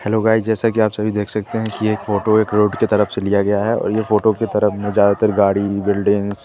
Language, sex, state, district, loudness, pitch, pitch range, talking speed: Hindi, male, Chandigarh, Chandigarh, -17 LUFS, 105 Hz, 100-110 Hz, 290 wpm